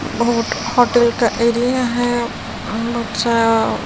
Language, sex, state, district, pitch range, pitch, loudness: Hindi, female, Delhi, New Delhi, 230-240 Hz, 235 Hz, -17 LUFS